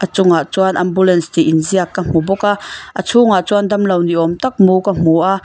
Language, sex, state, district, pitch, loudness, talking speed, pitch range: Mizo, female, Mizoram, Aizawl, 185 Hz, -14 LUFS, 230 wpm, 170-195 Hz